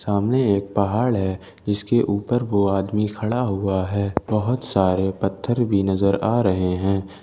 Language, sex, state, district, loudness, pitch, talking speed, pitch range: Hindi, male, Jharkhand, Ranchi, -21 LUFS, 100 Hz, 160 wpm, 95-110 Hz